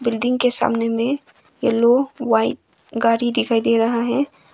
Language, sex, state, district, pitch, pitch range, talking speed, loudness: Hindi, female, Arunachal Pradesh, Longding, 235 Hz, 230-250 Hz, 145 wpm, -19 LUFS